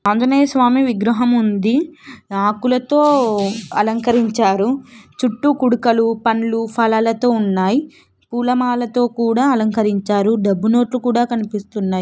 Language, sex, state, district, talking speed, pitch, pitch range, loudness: Telugu, female, Telangana, Nalgonda, 90 wpm, 235 Hz, 215-250 Hz, -16 LUFS